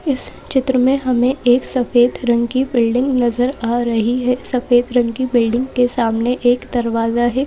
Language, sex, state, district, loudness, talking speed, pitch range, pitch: Hindi, female, Madhya Pradesh, Bhopal, -16 LUFS, 175 wpm, 240-255 Hz, 245 Hz